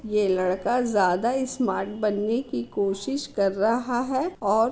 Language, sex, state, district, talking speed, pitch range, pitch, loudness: Hindi, female, Bihar, Muzaffarpur, 150 wpm, 195-245 Hz, 215 Hz, -25 LUFS